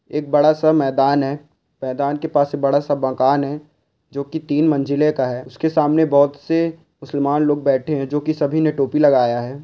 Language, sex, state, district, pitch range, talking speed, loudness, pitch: Hindi, male, Chhattisgarh, Korba, 140-150 Hz, 220 wpm, -18 LUFS, 145 Hz